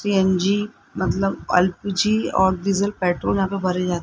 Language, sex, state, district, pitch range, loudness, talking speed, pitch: Hindi, male, Rajasthan, Jaipur, 185-200 Hz, -21 LUFS, 150 wpm, 195 Hz